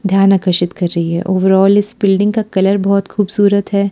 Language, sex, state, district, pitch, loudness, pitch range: Hindi, female, Himachal Pradesh, Shimla, 195 Hz, -13 LUFS, 190-200 Hz